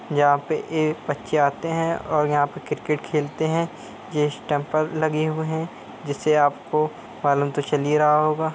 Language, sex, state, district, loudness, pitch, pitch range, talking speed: Hindi, male, Uttar Pradesh, Hamirpur, -23 LUFS, 150 Hz, 145-155 Hz, 175 wpm